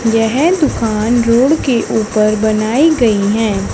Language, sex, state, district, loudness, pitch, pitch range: Hindi, female, Haryana, Charkhi Dadri, -13 LUFS, 225 Hz, 215-255 Hz